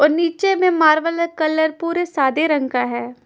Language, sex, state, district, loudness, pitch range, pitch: Hindi, female, Punjab, Kapurthala, -18 LUFS, 290-335 Hz, 315 Hz